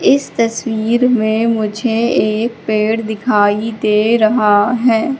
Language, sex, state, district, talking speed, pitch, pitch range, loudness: Hindi, female, Madhya Pradesh, Katni, 115 wpm, 225 Hz, 215-235 Hz, -14 LUFS